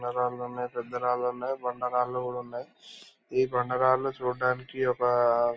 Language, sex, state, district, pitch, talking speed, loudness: Telugu, male, Andhra Pradesh, Anantapur, 125 Hz, 140 wpm, -29 LUFS